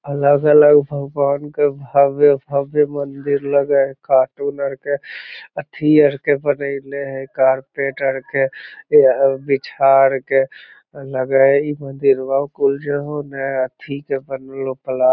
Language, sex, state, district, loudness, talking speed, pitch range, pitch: Magahi, male, Bihar, Lakhisarai, -17 LUFS, 95 wpm, 135-145 Hz, 140 Hz